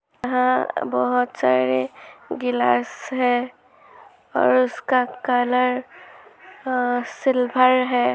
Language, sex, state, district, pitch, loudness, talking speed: Hindi, female, Uttar Pradesh, Muzaffarnagar, 250 Hz, -21 LUFS, 80 wpm